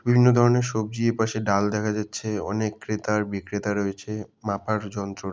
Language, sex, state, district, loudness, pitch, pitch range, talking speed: Bengali, male, West Bengal, Jalpaiguri, -25 LUFS, 105 Hz, 100-110 Hz, 170 wpm